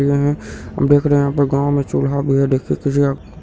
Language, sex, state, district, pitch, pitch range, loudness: Hindi, male, Bihar, Supaul, 140 Hz, 135-145 Hz, -17 LUFS